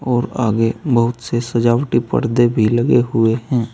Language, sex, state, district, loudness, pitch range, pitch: Hindi, male, Uttar Pradesh, Saharanpur, -16 LUFS, 115-120 Hz, 120 Hz